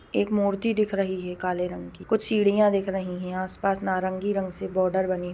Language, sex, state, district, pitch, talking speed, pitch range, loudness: Hindi, female, Bihar, Gopalganj, 190 Hz, 235 wpm, 185-200 Hz, -26 LUFS